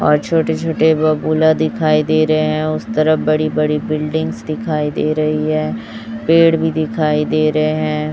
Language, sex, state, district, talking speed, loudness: Hindi, male, Chhattisgarh, Raipur, 170 wpm, -16 LUFS